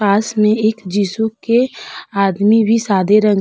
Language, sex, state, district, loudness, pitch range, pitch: Hindi, female, Uttar Pradesh, Hamirpur, -15 LUFS, 200-220 Hz, 215 Hz